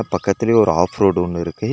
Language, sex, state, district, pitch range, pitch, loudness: Tamil, male, Tamil Nadu, Nilgiris, 85-110 Hz, 95 Hz, -17 LUFS